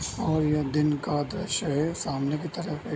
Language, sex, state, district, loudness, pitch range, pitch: Hindi, male, Bihar, Bhagalpur, -27 LUFS, 145-165 Hz, 150 Hz